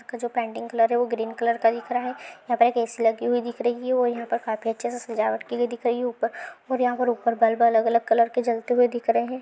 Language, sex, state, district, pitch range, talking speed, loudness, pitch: Hindi, female, Rajasthan, Churu, 230-245 Hz, 310 wpm, -24 LUFS, 235 Hz